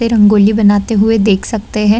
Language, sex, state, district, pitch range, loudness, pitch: Hindi, female, Bihar, Muzaffarpur, 205-220 Hz, -11 LUFS, 210 Hz